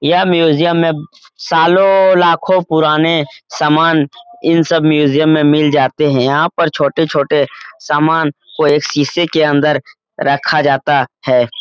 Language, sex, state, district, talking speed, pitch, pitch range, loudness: Hindi, male, Bihar, Lakhisarai, 130 wpm, 155 Hz, 145-165 Hz, -12 LUFS